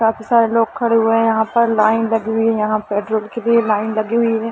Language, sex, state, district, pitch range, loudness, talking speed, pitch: Hindi, female, Jharkhand, Sahebganj, 220-230 Hz, -16 LUFS, 265 wpm, 225 Hz